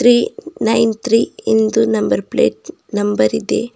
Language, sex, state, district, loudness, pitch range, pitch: Kannada, female, Karnataka, Bidar, -16 LUFS, 215-240 Hz, 225 Hz